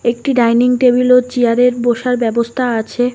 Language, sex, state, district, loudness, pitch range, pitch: Bengali, female, West Bengal, North 24 Parganas, -13 LUFS, 235-250 Hz, 245 Hz